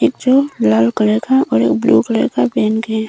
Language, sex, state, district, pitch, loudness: Hindi, female, Arunachal Pradesh, Longding, 215 Hz, -14 LUFS